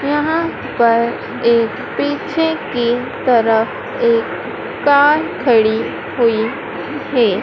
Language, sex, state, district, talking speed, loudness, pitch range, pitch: Hindi, female, Madhya Pradesh, Dhar, 90 wpm, -16 LUFS, 230-315 Hz, 245 Hz